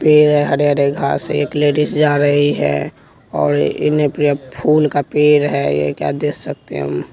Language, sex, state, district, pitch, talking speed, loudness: Hindi, male, Bihar, West Champaran, 145 Hz, 195 wpm, -15 LUFS